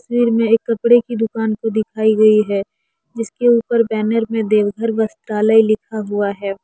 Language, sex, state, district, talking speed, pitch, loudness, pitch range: Hindi, female, Jharkhand, Deoghar, 180 wpm, 220 Hz, -16 LUFS, 215-230 Hz